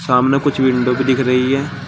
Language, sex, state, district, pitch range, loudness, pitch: Hindi, male, Uttar Pradesh, Shamli, 125-135 Hz, -15 LUFS, 130 Hz